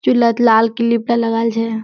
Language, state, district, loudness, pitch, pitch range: Surjapuri, Bihar, Kishanganj, -15 LUFS, 230 Hz, 225-235 Hz